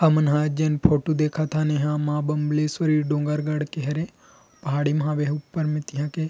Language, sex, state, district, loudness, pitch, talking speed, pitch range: Chhattisgarhi, male, Chhattisgarh, Rajnandgaon, -24 LUFS, 150 Hz, 180 wpm, 150-155 Hz